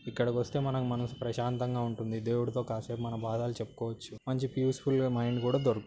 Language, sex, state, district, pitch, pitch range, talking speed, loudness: Telugu, male, Telangana, Karimnagar, 120 Hz, 115-130 Hz, 185 wpm, -33 LUFS